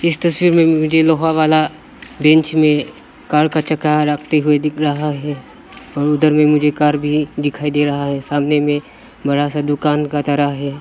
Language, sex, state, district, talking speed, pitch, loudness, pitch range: Hindi, male, Arunachal Pradesh, Lower Dibang Valley, 185 wpm, 150 Hz, -15 LUFS, 145-155 Hz